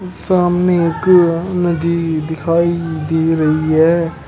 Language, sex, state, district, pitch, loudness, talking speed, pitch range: Hindi, male, Uttar Pradesh, Shamli, 170 Hz, -15 LUFS, 100 wpm, 160-175 Hz